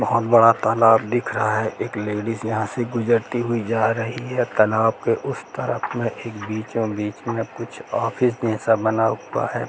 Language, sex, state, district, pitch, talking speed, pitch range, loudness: Hindi, male, Jharkhand, Jamtara, 115 Hz, 185 wpm, 110-115 Hz, -21 LUFS